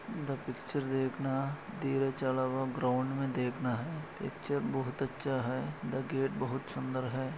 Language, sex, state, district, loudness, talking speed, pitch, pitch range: Hindi, male, Maharashtra, Aurangabad, -35 LUFS, 155 wpm, 135 Hz, 130-135 Hz